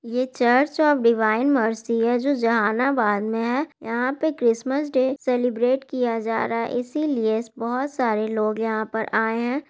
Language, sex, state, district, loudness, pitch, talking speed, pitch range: Hindi, female, Bihar, Gaya, -22 LUFS, 245 Hz, 165 wpm, 225-265 Hz